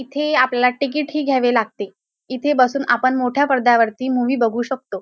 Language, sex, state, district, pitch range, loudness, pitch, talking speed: Marathi, female, Maharashtra, Dhule, 240-275 Hz, -18 LUFS, 255 Hz, 165 wpm